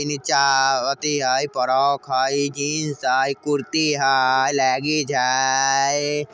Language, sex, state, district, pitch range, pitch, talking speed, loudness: Maithili, male, Bihar, Vaishali, 130-145 Hz, 140 Hz, 115 wpm, -20 LUFS